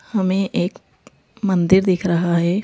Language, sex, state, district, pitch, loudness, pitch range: Hindi, female, Madhya Pradesh, Bhopal, 185 Hz, -19 LUFS, 175-195 Hz